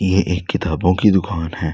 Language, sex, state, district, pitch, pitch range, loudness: Hindi, male, Delhi, New Delhi, 90 Hz, 85-95 Hz, -18 LUFS